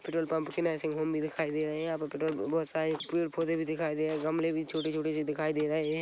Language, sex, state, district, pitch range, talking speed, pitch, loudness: Hindi, male, Chhattisgarh, Korba, 155-160 Hz, 310 wpm, 155 Hz, -32 LUFS